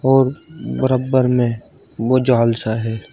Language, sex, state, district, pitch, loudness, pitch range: Hindi, male, Uttar Pradesh, Shamli, 125 Hz, -17 LUFS, 115-130 Hz